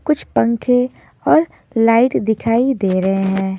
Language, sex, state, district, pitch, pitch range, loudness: Hindi, female, Maharashtra, Mumbai Suburban, 230 Hz, 195-250 Hz, -16 LUFS